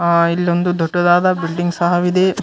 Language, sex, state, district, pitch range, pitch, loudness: Kannada, male, Karnataka, Gulbarga, 170-180 Hz, 175 Hz, -16 LUFS